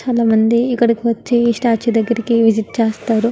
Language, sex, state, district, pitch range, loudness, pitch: Telugu, female, Andhra Pradesh, Guntur, 225-235 Hz, -15 LUFS, 230 Hz